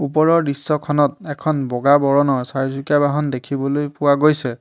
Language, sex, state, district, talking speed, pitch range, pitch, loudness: Assamese, male, Assam, Hailakandi, 130 wpm, 135-150 Hz, 145 Hz, -18 LUFS